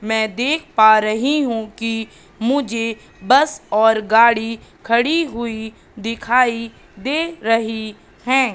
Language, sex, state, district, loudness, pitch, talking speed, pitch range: Hindi, female, Madhya Pradesh, Katni, -17 LUFS, 230 Hz, 110 wpm, 220-255 Hz